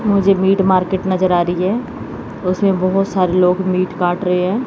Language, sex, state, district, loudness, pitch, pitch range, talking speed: Hindi, female, Chandigarh, Chandigarh, -16 LUFS, 185 Hz, 180-195 Hz, 195 wpm